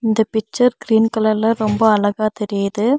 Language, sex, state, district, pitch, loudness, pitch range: Tamil, female, Tamil Nadu, Nilgiris, 220 Hz, -17 LUFS, 215-225 Hz